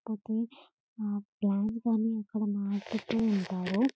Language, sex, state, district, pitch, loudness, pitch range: Telugu, female, Telangana, Karimnagar, 215 Hz, -32 LUFS, 205-225 Hz